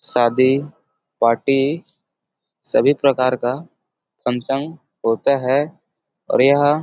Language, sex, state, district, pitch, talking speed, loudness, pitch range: Chhattisgarhi, male, Chhattisgarh, Rajnandgaon, 135 Hz, 95 wpm, -18 LUFS, 125-145 Hz